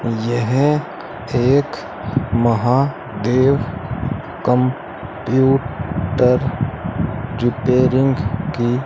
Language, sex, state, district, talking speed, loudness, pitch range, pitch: Hindi, male, Rajasthan, Bikaner, 70 wpm, -18 LUFS, 120-135 Hz, 125 Hz